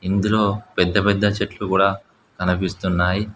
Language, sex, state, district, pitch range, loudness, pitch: Telugu, male, Telangana, Hyderabad, 90-100 Hz, -20 LUFS, 100 Hz